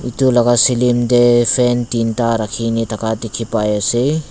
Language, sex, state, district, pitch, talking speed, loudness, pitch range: Nagamese, male, Nagaland, Dimapur, 120 Hz, 125 wpm, -15 LUFS, 115-125 Hz